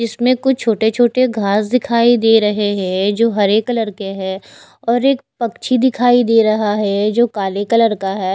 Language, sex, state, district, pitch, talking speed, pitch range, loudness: Hindi, female, Bihar, West Champaran, 225 Hz, 185 wpm, 205-240 Hz, -15 LUFS